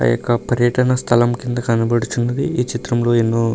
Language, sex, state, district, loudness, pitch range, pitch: Telugu, male, Karnataka, Bellary, -17 LUFS, 115-120 Hz, 120 Hz